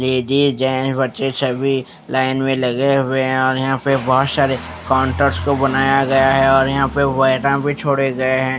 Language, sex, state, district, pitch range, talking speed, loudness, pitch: Hindi, male, Bihar, West Champaran, 130-135 Hz, 180 wpm, -17 LUFS, 135 Hz